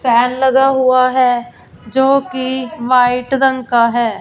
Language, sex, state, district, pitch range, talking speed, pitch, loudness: Hindi, female, Punjab, Fazilka, 240-265 Hz, 130 wpm, 255 Hz, -14 LUFS